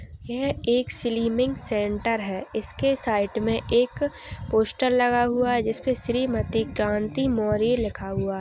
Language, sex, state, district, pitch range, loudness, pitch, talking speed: Hindi, female, Uttar Pradesh, Etah, 220-250 Hz, -25 LUFS, 235 Hz, 150 wpm